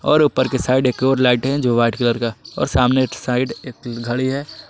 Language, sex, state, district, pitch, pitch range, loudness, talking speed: Hindi, male, Jharkhand, Palamu, 125 Hz, 120-135 Hz, -18 LUFS, 245 wpm